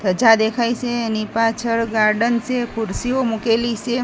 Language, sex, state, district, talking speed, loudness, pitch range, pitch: Gujarati, female, Gujarat, Gandhinagar, 150 wpm, -19 LUFS, 225-240 Hz, 230 Hz